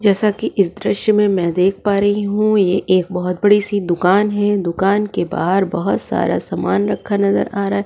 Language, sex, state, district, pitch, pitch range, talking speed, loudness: Hindi, female, Goa, North and South Goa, 200 Hz, 185-205 Hz, 215 wpm, -16 LUFS